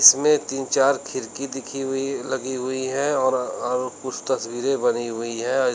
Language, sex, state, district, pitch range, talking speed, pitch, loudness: Hindi, male, Uttar Pradesh, Lalitpur, 125-135 Hz, 190 wpm, 130 Hz, -23 LUFS